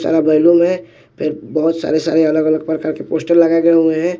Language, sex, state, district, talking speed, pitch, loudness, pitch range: Hindi, male, Bihar, West Champaran, 215 wpm, 160 Hz, -14 LUFS, 155-170 Hz